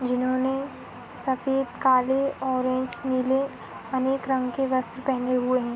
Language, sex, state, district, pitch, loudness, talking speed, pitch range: Hindi, female, Uttar Pradesh, Hamirpur, 260 Hz, -25 LUFS, 125 wpm, 255-265 Hz